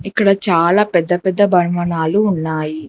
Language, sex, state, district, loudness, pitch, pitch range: Telugu, female, Telangana, Hyderabad, -15 LUFS, 175 Hz, 165-195 Hz